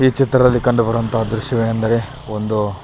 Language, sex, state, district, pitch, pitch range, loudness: Kannada, male, Karnataka, Belgaum, 115 Hz, 110-125 Hz, -17 LUFS